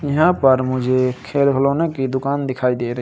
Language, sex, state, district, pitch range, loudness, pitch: Hindi, male, Uttar Pradesh, Saharanpur, 130-140 Hz, -18 LUFS, 130 Hz